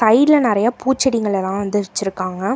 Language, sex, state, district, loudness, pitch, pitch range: Tamil, female, Karnataka, Bangalore, -17 LUFS, 210 Hz, 195-255 Hz